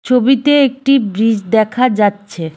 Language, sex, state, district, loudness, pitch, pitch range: Bengali, female, West Bengal, Cooch Behar, -13 LUFS, 225 Hz, 205-265 Hz